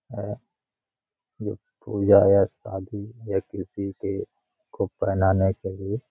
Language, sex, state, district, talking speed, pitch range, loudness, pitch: Hindi, male, Jharkhand, Jamtara, 110 wpm, 95-100 Hz, -25 LUFS, 100 Hz